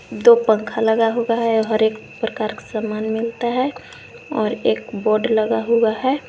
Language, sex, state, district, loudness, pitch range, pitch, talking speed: Hindi, female, Jharkhand, Garhwa, -19 LUFS, 220-235 Hz, 225 Hz, 170 wpm